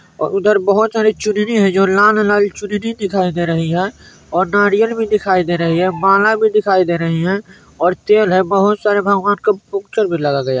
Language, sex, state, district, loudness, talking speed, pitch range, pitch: Bajjika, male, Bihar, Vaishali, -15 LUFS, 215 wpm, 185-210 Hz, 200 Hz